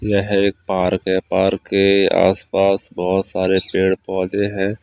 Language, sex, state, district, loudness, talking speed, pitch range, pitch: Hindi, male, Chandigarh, Chandigarh, -18 LUFS, 150 wpm, 95-100 Hz, 95 Hz